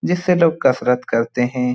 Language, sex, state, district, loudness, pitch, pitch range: Hindi, male, Bihar, Lakhisarai, -17 LUFS, 125 Hz, 125-170 Hz